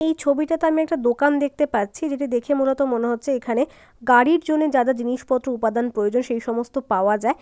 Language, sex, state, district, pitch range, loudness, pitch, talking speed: Bengali, female, West Bengal, Dakshin Dinajpur, 235-290 Hz, -21 LUFS, 260 Hz, 195 wpm